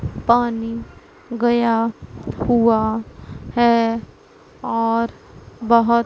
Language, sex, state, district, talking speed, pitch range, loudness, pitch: Hindi, female, Punjab, Pathankot, 60 wpm, 230-235 Hz, -19 LUFS, 230 Hz